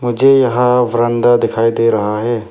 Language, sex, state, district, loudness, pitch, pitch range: Hindi, male, Arunachal Pradesh, Papum Pare, -13 LUFS, 120 Hz, 115-125 Hz